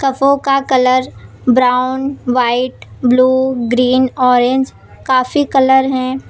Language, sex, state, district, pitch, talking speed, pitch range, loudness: Hindi, female, Uttar Pradesh, Lucknow, 255 Hz, 95 wpm, 250-265 Hz, -13 LUFS